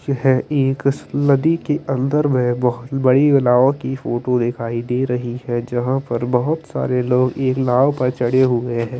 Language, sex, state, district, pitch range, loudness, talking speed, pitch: Hindi, male, Chandigarh, Chandigarh, 125-135 Hz, -18 LUFS, 165 wpm, 130 Hz